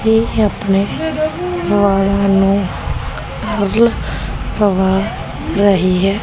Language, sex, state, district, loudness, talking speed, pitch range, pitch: Punjabi, female, Punjab, Kapurthala, -16 LUFS, 75 wpm, 195-210 Hz, 200 Hz